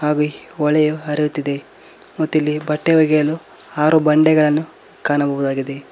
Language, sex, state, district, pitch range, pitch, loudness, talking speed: Kannada, male, Karnataka, Koppal, 145-155 Hz, 150 Hz, -17 LUFS, 100 wpm